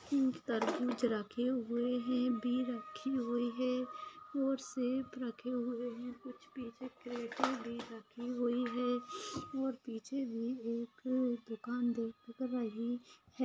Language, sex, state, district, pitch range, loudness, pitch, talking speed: Hindi, female, Maharashtra, Nagpur, 240-255 Hz, -38 LUFS, 245 Hz, 130 wpm